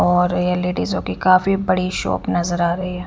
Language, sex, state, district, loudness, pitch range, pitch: Hindi, female, Haryana, Rohtak, -19 LUFS, 180-185 Hz, 180 Hz